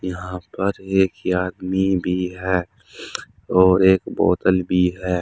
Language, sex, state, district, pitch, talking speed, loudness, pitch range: Hindi, male, Uttar Pradesh, Saharanpur, 90 Hz, 125 wpm, -20 LUFS, 90-95 Hz